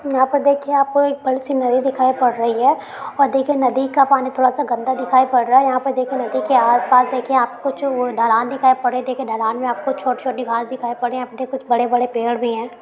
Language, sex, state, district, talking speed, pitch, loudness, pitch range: Hindi, female, Uttar Pradesh, Hamirpur, 255 wpm, 255 Hz, -17 LUFS, 245-270 Hz